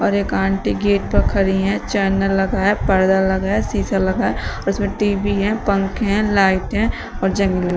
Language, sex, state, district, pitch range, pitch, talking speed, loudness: Hindi, female, Uttar Pradesh, Shamli, 185-200 Hz, 195 Hz, 175 wpm, -18 LUFS